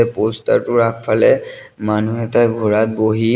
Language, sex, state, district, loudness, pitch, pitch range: Assamese, male, Assam, Sonitpur, -16 LUFS, 115 Hz, 110-120 Hz